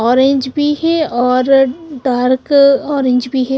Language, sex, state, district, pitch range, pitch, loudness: Hindi, female, Punjab, Fazilka, 255-285 Hz, 270 Hz, -13 LUFS